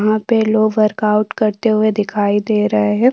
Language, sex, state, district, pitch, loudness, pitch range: Hindi, female, Maharashtra, Aurangabad, 215 Hz, -15 LUFS, 210-220 Hz